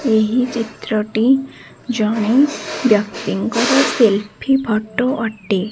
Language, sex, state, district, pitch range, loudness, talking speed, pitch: Odia, female, Odisha, Khordha, 215-250 Hz, -17 LUFS, 75 wpm, 225 Hz